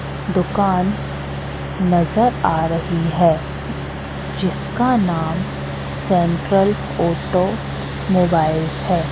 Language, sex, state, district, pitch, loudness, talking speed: Hindi, female, Madhya Pradesh, Katni, 165 Hz, -19 LUFS, 70 wpm